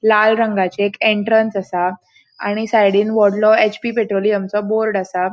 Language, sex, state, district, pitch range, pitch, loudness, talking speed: Konkani, female, Goa, North and South Goa, 195-220 Hz, 210 Hz, -16 LUFS, 145 wpm